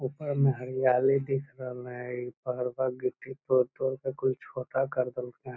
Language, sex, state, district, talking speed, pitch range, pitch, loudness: Magahi, male, Bihar, Lakhisarai, 140 wpm, 125-135 Hz, 130 Hz, -30 LUFS